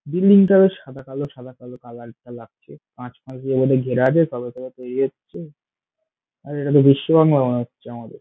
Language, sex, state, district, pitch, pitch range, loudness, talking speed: Bengali, male, West Bengal, Dakshin Dinajpur, 130 Hz, 125-145 Hz, -18 LUFS, 205 wpm